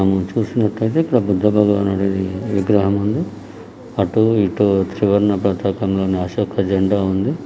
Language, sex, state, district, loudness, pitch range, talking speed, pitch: Telugu, male, Telangana, Karimnagar, -18 LUFS, 95-105 Hz, 135 wpm, 100 Hz